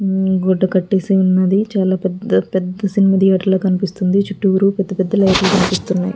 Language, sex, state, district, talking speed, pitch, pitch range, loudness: Telugu, female, Andhra Pradesh, Guntur, 155 wpm, 190 Hz, 185-195 Hz, -15 LUFS